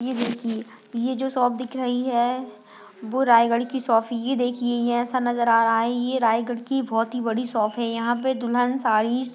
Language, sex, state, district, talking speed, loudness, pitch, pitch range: Hindi, female, Chhattisgarh, Raigarh, 220 wpm, -23 LUFS, 240 Hz, 230-250 Hz